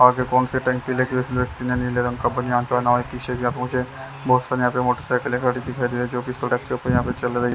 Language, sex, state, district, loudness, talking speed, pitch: Hindi, male, Haryana, Jhajjar, -22 LUFS, 215 wpm, 125 Hz